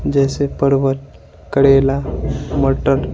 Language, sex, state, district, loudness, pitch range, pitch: Hindi, male, Bihar, Patna, -16 LUFS, 135-140 Hz, 135 Hz